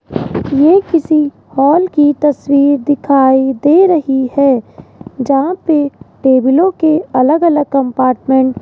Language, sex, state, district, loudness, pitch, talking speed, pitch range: Hindi, female, Rajasthan, Jaipur, -12 LUFS, 285 Hz, 120 wpm, 265-310 Hz